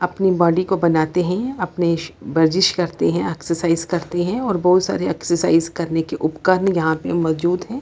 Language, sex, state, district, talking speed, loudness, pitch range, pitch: Hindi, female, Bihar, Lakhisarai, 190 wpm, -19 LUFS, 165-185 Hz, 175 Hz